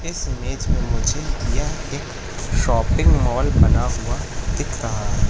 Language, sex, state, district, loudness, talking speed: Hindi, male, Madhya Pradesh, Katni, -22 LUFS, 135 wpm